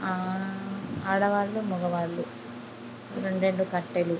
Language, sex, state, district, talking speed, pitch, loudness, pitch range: Telugu, female, Andhra Pradesh, Krishna, 70 wpm, 185 Hz, -29 LUFS, 170-195 Hz